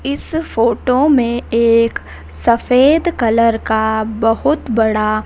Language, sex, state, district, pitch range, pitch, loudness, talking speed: Hindi, female, Madhya Pradesh, Dhar, 220-260 Hz, 230 Hz, -14 LUFS, 105 wpm